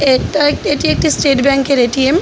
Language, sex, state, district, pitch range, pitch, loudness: Bengali, female, West Bengal, North 24 Parganas, 265-290 Hz, 275 Hz, -13 LUFS